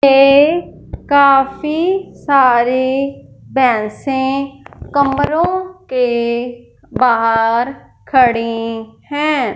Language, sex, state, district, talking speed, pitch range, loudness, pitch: Hindi, male, Punjab, Fazilka, 55 wpm, 240-285 Hz, -14 LUFS, 270 Hz